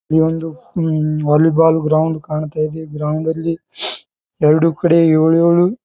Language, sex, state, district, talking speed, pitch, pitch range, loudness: Kannada, male, Karnataka, Bijapur, 125 wpm, 160 Hz, 155-165 Hz, -15 LUFS